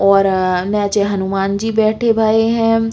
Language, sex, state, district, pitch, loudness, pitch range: Bundeli, female, Uttar Pradesh, Hamirpur, 205 Hz, -15 LUFS, 195-225 Hz